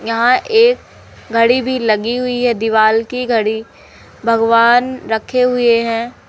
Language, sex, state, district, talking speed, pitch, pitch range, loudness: Hindi, female, Madhya Pradesh, Umaria, 135 wpm, 235 Hz, 225-250 Hz, -14 LUFS